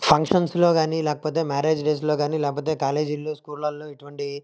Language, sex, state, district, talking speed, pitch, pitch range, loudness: Telugu, male, Andhra Pradesh, Krishna, 160 wpm, 150 Hz, 145-155 Hz, -23 LUFS